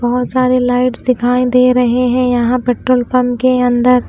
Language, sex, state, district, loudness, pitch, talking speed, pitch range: Hindi, female, Punjab, Pathankot, -13 LUFS, 250 Hz, 175 wpm, 245-255 Hz